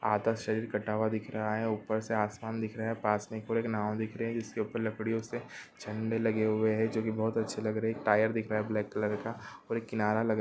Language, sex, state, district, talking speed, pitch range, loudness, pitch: Hindi, male, Jharkhand, Jamtara, 250 wpm, 110-115 Hz, -32 LUFS, 110 Hz